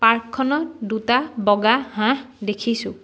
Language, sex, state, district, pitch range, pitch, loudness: Assamese, female, Assam, Sonitpur, 215-260 Hz, 230 Hz, -21 LUFS